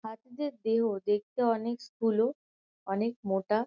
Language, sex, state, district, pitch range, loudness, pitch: Bengali, female, West Bengal, Kolkata, 210-240 Hz, -31 LUFS, 225 Hz